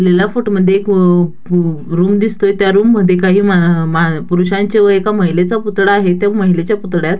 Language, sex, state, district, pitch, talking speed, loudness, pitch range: Marathi, female, Maharashtra, Dhule, 195 Hz, 200 wpm, -12 LUFS, 175-205 Hz